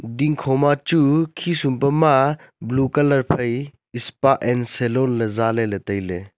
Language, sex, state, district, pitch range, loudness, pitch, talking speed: Wancho, male, Arunachal Pradesh, Longding, 115-145 Hz, -20 LUFS, 130 Hz, 140 wpm